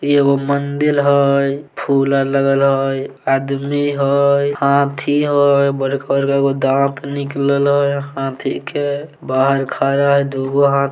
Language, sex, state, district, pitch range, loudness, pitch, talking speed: Maithili, male, Bihar, Samastipur, 135-140 Hz, -16 LUFS, 140 Hz, 145 wpm